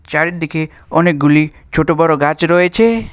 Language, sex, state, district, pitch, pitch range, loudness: Bengali, male, West Bengal, Alipurduar, 160 Hz, 155-175 Hz, -13 LUFS